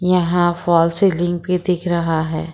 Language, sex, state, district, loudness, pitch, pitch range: Hindi, female, Jharkhand, Ranchi, -17 LUFS, 175 Hz, 170-180 Hz